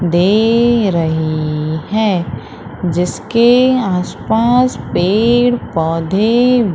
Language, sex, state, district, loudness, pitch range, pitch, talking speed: Hindi, female, Madhya Pradesh, Umaria, -14 LUFS, 165-235 Hz, 200 Hz, 70 wpm